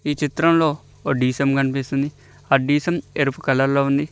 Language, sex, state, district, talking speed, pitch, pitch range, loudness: Telugu, male, Telangana, Mahabubabad, 160 wpm, 140 Hz, 135-150 Hz, -20 LUFS